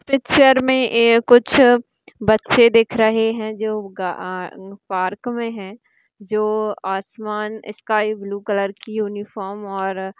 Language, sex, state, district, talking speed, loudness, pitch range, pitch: Hindi, female, Bihar, East Champaran, 135 wpm, -18 LUFS, 200-235 Hz, 215 Hz